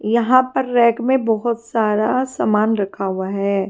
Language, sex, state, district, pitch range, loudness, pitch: Hindi, female, Himachal Pradesh, Shimla, 210-245 Hz, -18 LUFS, 225 Hz